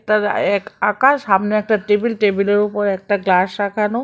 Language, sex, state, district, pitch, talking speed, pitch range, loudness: Bengali, female, Tripura, West Tripura, 205 Hz, 150 wpm, 200-215 Hz, -17 LUFS